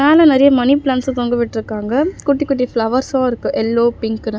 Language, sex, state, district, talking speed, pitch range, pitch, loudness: Tamil, female, Tamil Nadu, Chennai, 180 wpm, 230-280 Hz, 250 Hz, -15 LUFS